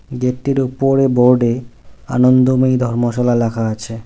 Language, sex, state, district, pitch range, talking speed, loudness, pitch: Bengali, male, West Bengal, Cooch Behar, 120-130 Hz, 105 wpm, -15 LUFS, 125 Hz